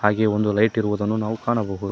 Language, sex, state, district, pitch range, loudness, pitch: Kannada, male, Karnataka, Koppal, 105-110 Hz, -22 LUFS, 105 Hz